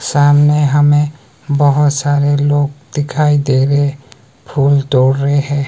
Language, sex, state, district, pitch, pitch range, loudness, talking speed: Hindi, male, Himachal Pradesh, Shimla, 145 Hz, 140-145 Hz, -13 LUFS, 125 wpm